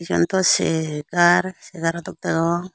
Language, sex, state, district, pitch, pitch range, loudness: Chakma, female, Tripura, Unakoti, 175 Hz, 165-180 Hz, -20 LUFS